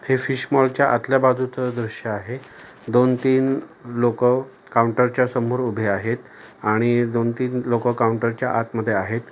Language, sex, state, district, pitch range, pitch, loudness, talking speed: Marathi, male, Maharashtra, Pune, 115-130 Hz, 120 Hz, -21 LUFS, 140 wpm